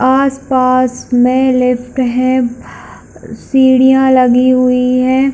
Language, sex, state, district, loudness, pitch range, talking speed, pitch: Hindi, female, Chhattisgarh, Bilaspur, -11 LUFS, 250-260 Hz, 100 wpm, 255 Hz